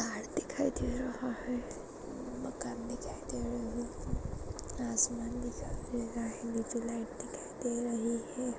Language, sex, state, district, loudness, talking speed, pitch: Hindi, female, Maharashtra, Aurangabad, -37 LUFS, 140 wpm, 230 Hz